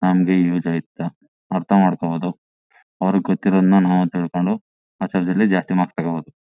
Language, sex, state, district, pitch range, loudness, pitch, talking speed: Kannada, male, Karnataka, Chamarajanagar, 85-95 Hz, -19 LUFS, 90 Hz, 100 wpm